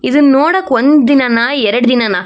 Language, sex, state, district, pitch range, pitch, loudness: Kannada, female, Karnataka, Shimoga, 235-285 Hz, 270 Hz, -10 LUFS